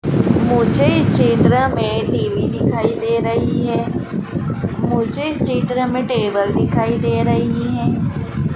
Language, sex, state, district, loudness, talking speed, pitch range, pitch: Hindi, female, Madhya Pradesh, Dhar, -17 LUFS, 125 wpm, 205-255 Hz, 250 Hz